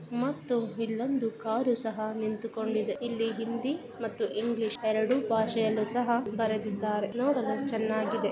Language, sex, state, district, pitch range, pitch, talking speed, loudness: Kannada, female, Karnataka, Bijapur, 220-240 Hz, 225 Hz, 110 wpm, -30 LUFS